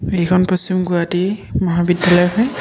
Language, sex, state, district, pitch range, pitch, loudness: Assamese, male, Assam, Kamrup Metropolitan, 175-185 Hz, 180 Hz, -16 LUFS